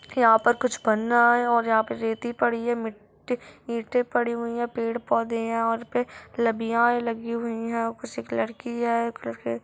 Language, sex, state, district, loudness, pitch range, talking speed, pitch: Hindi, female, Chhattisgarh, Korba, -25 LUFS, 225-240 Hz, 195 wpm, 230 Hz